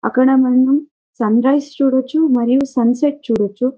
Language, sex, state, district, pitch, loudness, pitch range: Telugu, female, Karnataka, Bellary, 260 Hz, -15 LUFS, 245-285 Hz